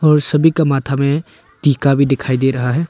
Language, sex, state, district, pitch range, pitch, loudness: Hindi, male, Arunachal Pradesh, Longding, 135-150 Hz, 140 Hz, -15 LUFS